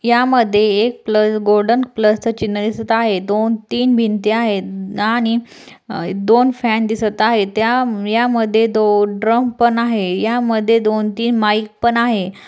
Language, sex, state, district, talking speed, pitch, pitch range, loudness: Marathi, female, Maharashtra, Aurangabad, 160 wpm, 220 Hz, 210-235 Hz, -16 LUFS